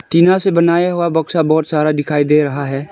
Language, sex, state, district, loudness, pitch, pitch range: Hindi, male, Arunachal Pradesh, Lower Dibang Valley, -14 LUFS, 160 Hz, 150-170 Hz